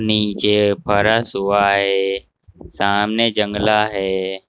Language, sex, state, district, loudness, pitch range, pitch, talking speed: Hindi, male, Uttar Pradesh, Saharanpur, -17 LUFS, 100-105 Hz, 100 Hz, 95 wpm